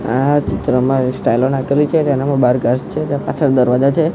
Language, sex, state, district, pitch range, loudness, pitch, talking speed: Gujarati, male, Gujarat, Gandhinagar, 125-145 Hz, -15 LUFS, 135 Hz, 190 wpm